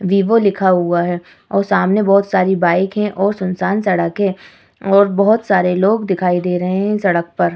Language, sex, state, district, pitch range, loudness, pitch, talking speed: Hindi, female, Uttar Pradesh, Muzaffarnagar, 180-200 Hz, -15 LUFS, 190 Hz, 190 wpm